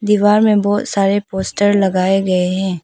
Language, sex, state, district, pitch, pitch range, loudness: Hindi, female, Arunachal Pradesh, Papum Pare, 200 Hz, 190-205 Hz, -15 LUFS